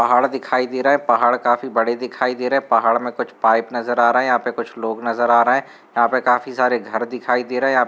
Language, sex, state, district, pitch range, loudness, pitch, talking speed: Hindi, male, Bihar, Sitamarhi, 120-125 Hz, -18 LUFS, 120 Hz, 260 wpm